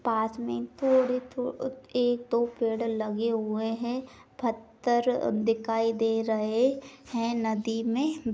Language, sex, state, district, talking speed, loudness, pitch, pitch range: Hindi, female, Uttar Pradesh, Etah, 115 wpm, -28 LUFS, 230 Hz, 225-250 Hz